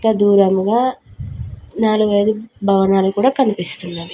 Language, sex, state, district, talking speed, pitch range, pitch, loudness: Telugu, female, Telangana, Mahabubabad, 70 wpm, 175-215 Hz, 200 Hz, -16 LUFS